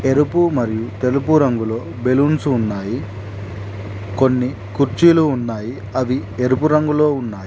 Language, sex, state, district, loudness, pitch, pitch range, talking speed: Telugu, male, Telangana, Mahabubabad, -17 LUFS, 125 Hz, 105-140 Hz, 105 wpm